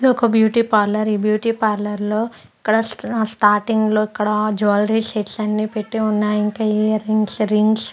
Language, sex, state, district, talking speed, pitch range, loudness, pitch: Telugu, female, Andhra Pradesh, Sri Satya Sai, 175 wpm, 210-220 Hz, -18 LUFS, 215 Hz